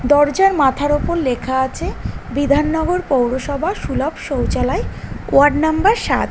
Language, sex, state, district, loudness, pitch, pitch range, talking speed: Bengali, female, West Bengal, North 24 Parganas, -17 LUFS, 290 Hz, 270-320 Hz, 115 wpm